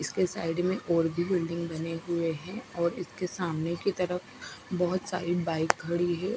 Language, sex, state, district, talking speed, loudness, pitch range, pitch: Hindi, female, Punjab, Fazilka, 180 wpm, -30 LUFS, 165-180 Hz, 175 Hz